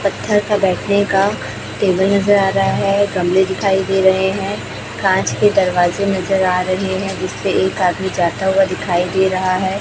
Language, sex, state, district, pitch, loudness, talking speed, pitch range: Hindi, female, Chhattisgarh, Raipur, 190 Hz, -16 LUFS, 185 wpm, 185-195 Hz